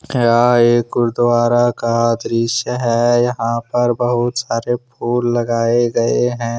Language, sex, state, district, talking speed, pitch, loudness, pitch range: Hindi, male, Jharkhand, Deoghar, 125 wpm, 120 Hz, -16 LUFS, 115-120 Hz